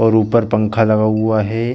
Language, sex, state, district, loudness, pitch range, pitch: Hindi, male, Chhattisgarh, Bilaspur, -15 LUFS, 110-115 Hz, 110 Hz